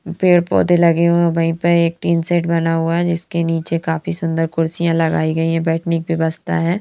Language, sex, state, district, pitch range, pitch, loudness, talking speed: Hindi, female, Haryana, Rohtak, 165-170 Hz, 165 Hz, -17 LUFS, 210 wpm